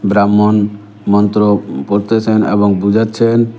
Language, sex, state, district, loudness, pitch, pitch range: Bengali, male, West Bengal, Cooch Behar, -12 LUFS, 105 Hz, 100-110 Hz